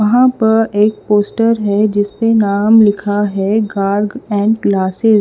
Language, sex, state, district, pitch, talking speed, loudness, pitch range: Hindi, female, Haryana, Rohtak, 210 Hz, 160 wpm, -13 LUFS, 205-225 Hz